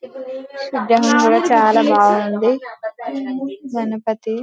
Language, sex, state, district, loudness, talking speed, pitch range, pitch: Telugu, female, Telangana, Karimnagar, -16 LUFS, 65 wpm, 220-265 Hz, 235 Hz